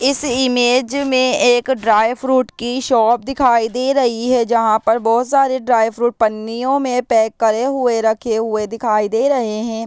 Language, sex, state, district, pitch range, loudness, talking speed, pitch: Hindi, female, Bihar, Begusarai, 225-260 Hz, -16 LUFS, 175 wpm, 240 Hz